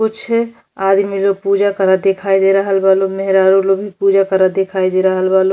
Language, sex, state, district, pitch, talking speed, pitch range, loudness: Bhojpuri, female, Uttar Pradesh, Deoria, 195 Hz, 195 wpm, 190-195 Hz, -14 LUFS